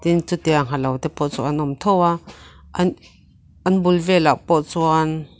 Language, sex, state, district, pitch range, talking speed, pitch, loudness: Mizo, female, Mizoram, Aizawl, 150-175 Hz, 180 wpm, 160 Hz, -19 LUFS